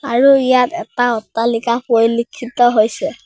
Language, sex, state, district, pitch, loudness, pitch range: Assamese, female, Assam, Sonitpur, 240 Hz, -15 LUFS, 230-260 Hz